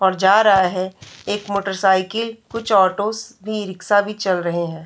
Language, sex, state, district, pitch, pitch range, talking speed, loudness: Hindi, female, Uttar Pradesh, Varanasi, 195 Hz, 185-215 Hz, 175 wpm, -19 LUFS